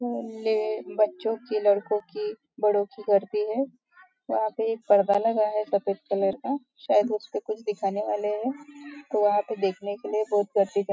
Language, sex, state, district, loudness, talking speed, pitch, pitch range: Hindi, female, Maharashtra, Nagpur, -26 LUFS, 170 wpm, 215 Hz, 205-225 Hz